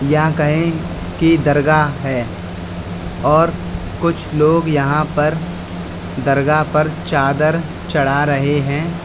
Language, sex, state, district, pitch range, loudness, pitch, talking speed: Hindi, male, Uttar Pradesh, Lalitpur, 120-155 Hz, -16 LUFS, 145 Hz, 105 wpm